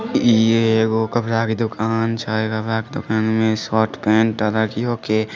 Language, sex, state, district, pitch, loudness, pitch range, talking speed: Maithili, male, Bihar, Samastipur, 110 Hz, -19 LUFS, 110-115 Hz, 145 wpm